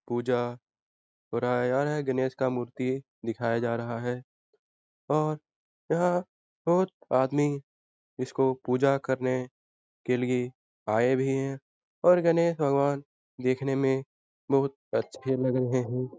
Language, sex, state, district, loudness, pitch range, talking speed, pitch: Hindi, male, Bihar, Lakhisarai, -28 LUFS, 120-140 Hz, 125 wpm, 130 Hz